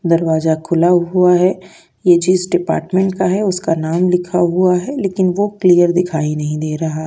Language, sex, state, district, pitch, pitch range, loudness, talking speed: Hindi, female, Uttar Pradesh, Jyotiba Phule Nagar, 180 Hz, 165-185 Hz, -15 LUFS, 180 wpm